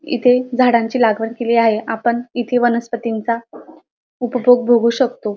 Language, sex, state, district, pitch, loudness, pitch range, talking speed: Marathi, female, Maharashtra, Dhule, 235 Hz, -16 LUFS, 230-245 Hz, 125 wpm